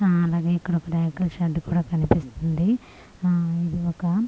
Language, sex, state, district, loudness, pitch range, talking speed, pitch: Telugu, female, Andhra Pradesh, Manyam, -24 LUFS, 170-175 Hz, 155 wpm, 170 Hz